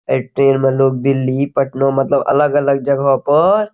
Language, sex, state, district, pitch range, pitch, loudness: Maithili, male, Bihar, Saharsa, 135-140 Hz, 135 Hz, -14 LUFS